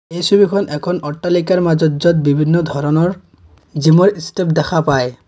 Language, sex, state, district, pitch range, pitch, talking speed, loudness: Assamese, male, Assam, Kamrup Metropolitan, 150-175 Hz, 160 Hz, 135 wpm, -15 LUFS